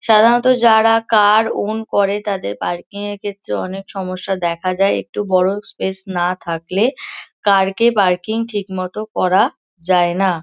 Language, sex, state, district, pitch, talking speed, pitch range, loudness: Bengali, female, West Bengal, Kolkata, 195 Hz, 145 wpm, 185-215 Hz, -17 LUFS